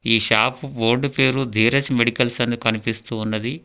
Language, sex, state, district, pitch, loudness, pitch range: Telugu, male, Telangana, Hyderabad, 120 Hz, -19 LUFS, 115-130 Hz